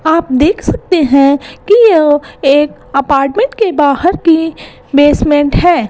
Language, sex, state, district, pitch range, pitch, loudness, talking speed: Hindi, female, Gujarat, Gandhinagar, 280-345 Hz, 295 Hz, -10 LUFS, 130 wpm